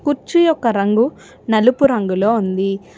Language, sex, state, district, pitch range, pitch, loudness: Telugu, female, Telangana, Hyderabad, 200-275 Hz, 230 Hz, -16 LUFS